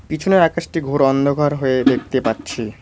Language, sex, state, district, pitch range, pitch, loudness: Bengali, male, West Bengal, Cooch Behar, 130-155 Hz, 140 Hz, -17 LUFS